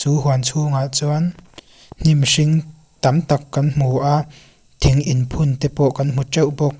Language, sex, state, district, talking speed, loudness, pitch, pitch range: Mizo, female, Mizoram, Aizawl, 150 wpm, -18 LUFS, 145 Hz, 140-155 Hz